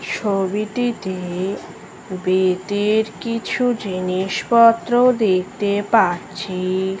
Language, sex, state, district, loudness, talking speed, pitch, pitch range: Bengali, female, West Bengal, Malda, -19 LUFS, 60 wpm, 200 Hz, 185-230 Hz